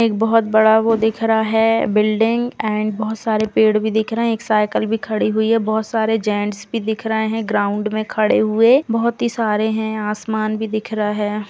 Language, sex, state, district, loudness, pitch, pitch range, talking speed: Hindi, female, Uttar Pradesh, Jalaun, -18 LUFS, 220 Hz, 215-225 Hz, 220 wpm